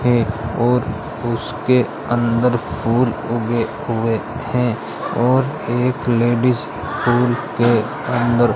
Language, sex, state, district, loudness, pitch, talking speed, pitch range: Hindi, male, Rajasthan, Bikaner, -19 LUFS, 120 Hz, 100 wpm, 115-125 Hz